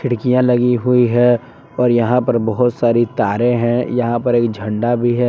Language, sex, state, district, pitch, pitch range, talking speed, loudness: Hindi, male, Jharkhand, Palamu, 120 Hz, 120-125 Hz, 190 wpm, -15 LUFS